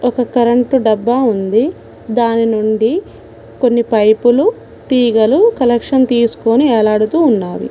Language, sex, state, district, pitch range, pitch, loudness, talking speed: Telugu, female, Telangana, Mahabubabad, 220-250 Hz, 235 Hz, -13 LUFS, 100 wpm